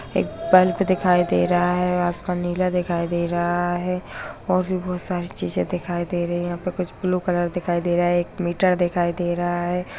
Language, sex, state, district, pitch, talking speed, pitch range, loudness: Hindi, female, Bihar, Muzaffarpur, 175 Hz, 215 wpm, 175-180 Hz, -22 LUFS